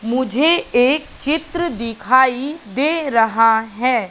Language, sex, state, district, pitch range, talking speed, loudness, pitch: Hindi, female, Madhya Pradesh, Katni, 230-300 Hz, 100 wpm, -17 LUFS, 255 Hz